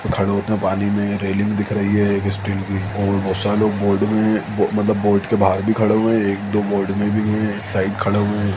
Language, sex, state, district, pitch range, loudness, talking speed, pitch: Hindi, male, Chhattisgarh, Sukma, 100-105 Hz, -19 LUFS, 260 wpm, 100 Hz